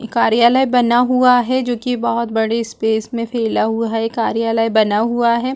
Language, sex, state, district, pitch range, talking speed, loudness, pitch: Hindi, female, Chhattisgarh, Balrampur, 225-245 Hz, 185 wpm, -16 LUFS, 230 Hz